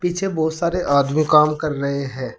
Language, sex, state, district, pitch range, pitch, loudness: Hindi, male, Uttar Pradesh, Saharanpur, 140-170 Hz, 155 Hz, -19 LUFS